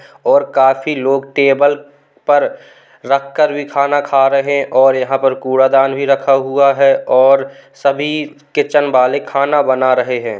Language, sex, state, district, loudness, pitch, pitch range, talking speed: Hindi, male, Uttar Pradesh, Hamirpur, -13 LUFS, 140 Hz, 135-145 Hz, 165 wpm